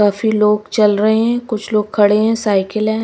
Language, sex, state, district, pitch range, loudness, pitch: Hindi, female, Himachal Pradesh, Shimla, 210-220 Hz, -15 LUFS, 215 Hz